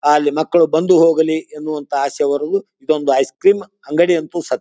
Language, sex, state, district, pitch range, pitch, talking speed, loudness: Kannada, male, Karnataka, Bijapur, 145-170 Hz, 155 Hz, 180 wpm, -16 LUFS